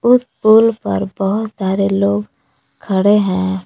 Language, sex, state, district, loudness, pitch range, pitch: Hindi, female, Jharkhand, Palamu, -15 LUFS, 190-215 Hz, 200 Hz